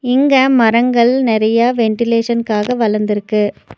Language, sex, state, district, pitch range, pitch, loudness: Tamil, female, Tamil Nadu, Nilgiris, 220-245 Hz, 235 Hz, -13 LUFS